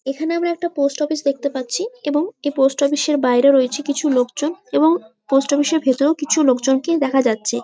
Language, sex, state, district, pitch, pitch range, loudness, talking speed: Bengali, female, West Bengal, Malda, 285 Hz, 265-310 Hz, -18 LUFS, 205 wpm